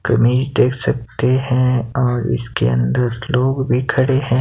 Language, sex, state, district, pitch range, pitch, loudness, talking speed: Hindi, male, Himachal Pradesh, Shimla, 120-130 Hz, 125 Hz, -17 LUFS, 150 wpm